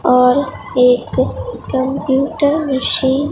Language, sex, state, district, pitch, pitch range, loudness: Hindi, female, Bihar, Katihar, 265 Hz, 250-285 Hz, -15 LUFS